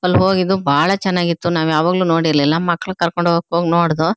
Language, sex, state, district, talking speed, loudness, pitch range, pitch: Kannada, female, Karnataka, Shimoga, 175 wpm, -16 LUFS, 165-180 Hz, 170 Hz